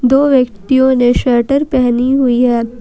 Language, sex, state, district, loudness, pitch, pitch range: Hindi, female, Jharkhand, Ranchi, -12 LUFS, 250 Hz, 245-265 Hz